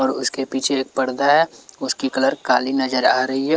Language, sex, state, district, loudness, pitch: Hindi, male, Chhattisgarh, Raipur, -19 LUFS, 135 Hz